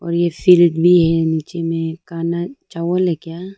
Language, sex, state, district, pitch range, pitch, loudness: Hindi, female, Arunachal Pradesh, Lower Dibang Valley, 165-175 Hz, 170 Hz, -17 LUFS